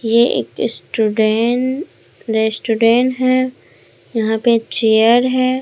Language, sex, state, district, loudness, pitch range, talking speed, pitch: Hindi, male, Bihar, Katihar, -16 LUFS, 220-255 Hz, 95 wpm, 235 Hz